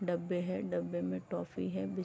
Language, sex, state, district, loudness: Hindi, female, Uttar Pradesh, Varanasi, -37 LUFS